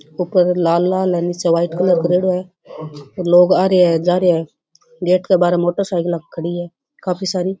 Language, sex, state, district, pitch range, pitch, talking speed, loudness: Rajasthani, female, Rajasthan, Churu, 170-185 Hz, 180 Hz, 190 wpm, -16 LUFS